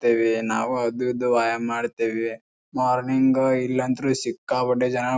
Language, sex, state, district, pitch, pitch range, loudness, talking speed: Kannada, male, Karnataka, Bijapur, 125 Hz, 115-130 Hz, -23 LUFS, 140 wpm